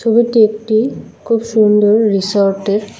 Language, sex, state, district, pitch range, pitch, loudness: Bengali, female, West Bengal, Alipurduar, 205-225 Hz, 215 Hz, -13 LUFS